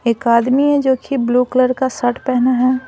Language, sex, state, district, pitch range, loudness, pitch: Hindi, female, Bihar, Patna, 245-260 Hz, -15 LUFS, 255 Hz